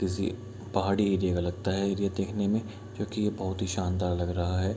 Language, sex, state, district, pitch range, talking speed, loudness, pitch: Hindi, male, Bihar, Kishanganj, 95-105 Hz, 215 wpm, -30 LUFS, 95 Hz